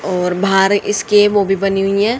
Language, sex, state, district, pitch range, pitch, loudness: Hindi, female, Haryana, Charkhi Dadri, 195-205 Hz, 195 Hz, -14 LUFS